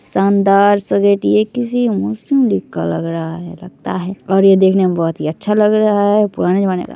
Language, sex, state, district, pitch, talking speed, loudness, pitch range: Hindi, female, Bihar, Begusarai, 195 Hz, 215 wpm, -14 LUFS, 180-210 Hz